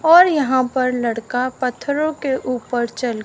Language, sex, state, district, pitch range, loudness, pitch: Hindi, female, Haryana, Rohtak, 245-285 Hz, -19 LUFS, 255 Hz